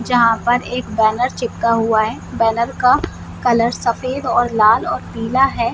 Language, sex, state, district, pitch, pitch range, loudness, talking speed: Hindi, female, Jharkhand, Jamtara, 235 Hz, 225-250 Hz, -17 LUFS, 165 wpm